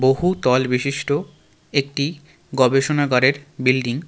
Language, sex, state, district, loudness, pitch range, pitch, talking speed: Bengali, male, West Bengal, Darjeeling, -20 LUFS, 130-150 Hz, 140 Hz, 105 wpm